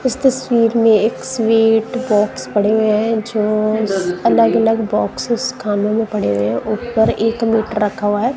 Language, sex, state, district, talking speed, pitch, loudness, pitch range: Hindi, female, Punjab, Kapurthala, 170 wpm, 220 Hz, -16 LUFS, 210-230 Hz